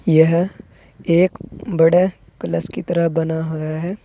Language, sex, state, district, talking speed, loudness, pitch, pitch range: Hindi, male, Uttar Pradesh, Saharanpur, 135 wpm, -18 LUFS, 165 Hz, 160-180 Hz